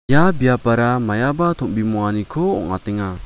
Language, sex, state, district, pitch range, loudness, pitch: Garo, male, Meghalaya, West Garo Hills, 105-130 Hz, -18 LUFS, 115 Hz